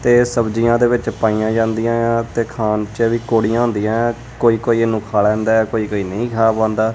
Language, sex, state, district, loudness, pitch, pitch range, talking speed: Punjabi, male, Punjab, Kapurthala, -17 LUFS, 115 Hz, 110-115 Hz, 200 wpm